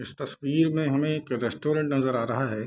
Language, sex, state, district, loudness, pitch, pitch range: Hindi, male, Bihar, Darbhanga, -26 LUFS, 140 Hz, 125-150 Hz